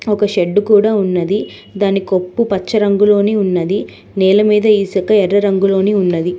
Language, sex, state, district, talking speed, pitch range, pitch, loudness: Telugu, female, Telangana, Hyderabad, 140 wpm, 190-210 Hz, 200 Hz, -14 LUFS